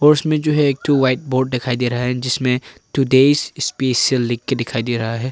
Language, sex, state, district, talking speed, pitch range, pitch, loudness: Hindi, male, Arunachal Pradesh, Papum Pare, 235 wpm, 125-140 Hz, 130 Hz, -18 LUFS